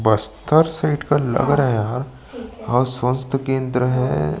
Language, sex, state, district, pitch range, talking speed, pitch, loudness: Hindi, male, Chhattisgarh, Sukma, 120-145 Hz, 165 wpm, 130 Hz, -19 LUFS